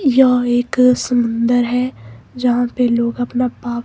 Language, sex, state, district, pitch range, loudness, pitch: Hindi, male, Himachal Pradesh, Shimla, 240-250 Hz, -16 LUFS, 245 Hz